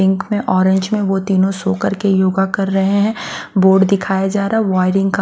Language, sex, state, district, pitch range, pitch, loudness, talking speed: Hindi, female, Bihar, West Champaran, 190-200 Hz, 195 Hz, -15 LUFS, 220 wpm